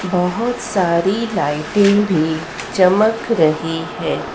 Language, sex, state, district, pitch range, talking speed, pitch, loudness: Hindi, female, Madhya Pradesh, Dhar, 160-210 Hz, 95 wpm, 185 Hz, -17 LUFS